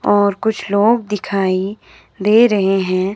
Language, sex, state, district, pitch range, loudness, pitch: Hindi, female, Himachal Pradesh, Shimla, 195-215 Hz, -16 LUFS, 200 Hz